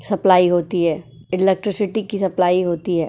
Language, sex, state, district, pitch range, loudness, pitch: Hindi, female, Uttar Pradesh, Jyotiba Phule Nagar, 175-195 Hz, -18 LUFS, 185 Hz